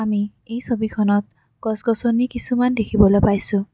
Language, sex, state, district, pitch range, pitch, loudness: Assamese, female, Assam, Kamrup Metropolitan, 205-235 Hz, 220 Hz, -20 LUFS